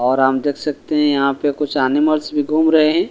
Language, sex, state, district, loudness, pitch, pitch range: Hindi, male, Delhi, New Delhi, -17 LUFS, 150 Hz, 140-155 Hz